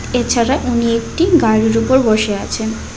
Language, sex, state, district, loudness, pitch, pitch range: Bengali, female, Tripura, West Tripura, -15 LUFS, 230 Hz, 220-250 Hz